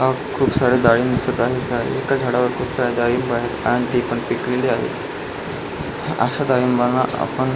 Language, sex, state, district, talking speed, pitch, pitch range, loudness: Marathi, male, Maharashtra, Pune, 165 wpm, 125 Hz, 120-130 Hz, -20 LUFS